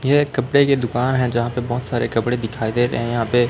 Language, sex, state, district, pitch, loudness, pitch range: Hindi, male, Chhattisgarh, Raipur, 120 Hz, -19 LUFS, 120-130 Hz